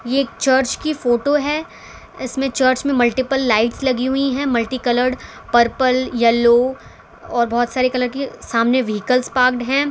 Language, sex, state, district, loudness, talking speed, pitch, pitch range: Hindi, female, Gujarat, Valsad, -18 LUFS, 165 wpm, 255 Hz, 240-270 Hz